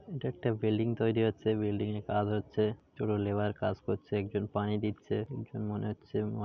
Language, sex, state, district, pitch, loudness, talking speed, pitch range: Bengali, male, West Bengal, Paschim Medinipur, 105 Hz, -33 LUFS, 185 wpm, 105-110 Hz